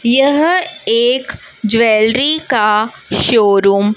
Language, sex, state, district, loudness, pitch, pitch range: Hindi, female, Chhattisgarh, Raipur, -12 LUFS, 235 Hz, 215-315 Hz